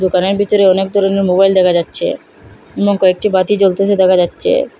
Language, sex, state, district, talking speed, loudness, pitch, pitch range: Bengali, female, Assam, Hailakandi, 175 wpm, -13 LUFS, 195 Hz, 185-200 Hz